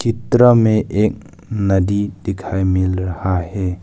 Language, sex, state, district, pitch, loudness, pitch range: Hindi, male, Arunachal Pradesh, Lower Dibang Valley, 100 Hz, -17 LUFS, 95-110 Hz